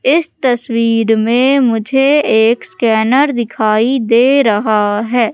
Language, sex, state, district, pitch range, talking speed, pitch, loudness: Hindi, female, Madhya Pradesh, Katni, 220-265 Hz, 110 wpm, 235 Hz, -12 LUFS